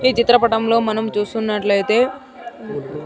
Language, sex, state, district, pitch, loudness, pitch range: Telugu, male, Andhra Pradesh, Sri Satya Sai, 225 Hz, -17 LUFS, 210-240 Hz